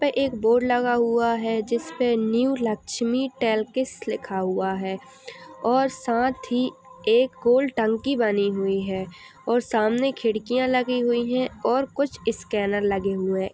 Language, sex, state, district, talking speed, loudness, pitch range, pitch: Hindi, female, Uttar Pradesh, Etah, 140 wpm, -24 LUFS, 215-255 Hz, 235 Hz